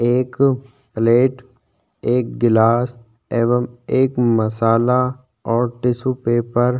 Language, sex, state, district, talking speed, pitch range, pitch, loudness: Hindi, male, Chhattisgarh, Korba, 95 wpm, 115-125 Hz, 120 Hz, -18 LUFS